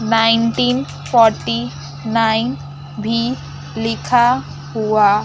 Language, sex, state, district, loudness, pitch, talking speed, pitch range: Hindi, female, Chandigarh, Chandigarh, -17 LUFS, 220 Hz, 80 wpm, 140-230 Hz